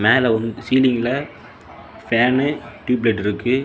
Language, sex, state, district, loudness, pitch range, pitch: Tamil, male, Tamil Nadu, Namakkal, -19 LUFS, 115-130 Hz, 125 Hz